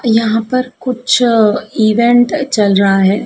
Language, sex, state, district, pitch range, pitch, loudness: Hindi, female, Madhya Pradesh, Dhar, 210-250 Hz, 230 Hz, -12 LUFS